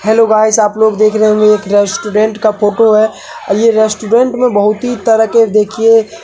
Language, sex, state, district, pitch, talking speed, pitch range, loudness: Hindi, male, Uttar Pradesh, Hamirpur, 215 Hz, 200 wpm, 210-225 Hz, -10 LUFS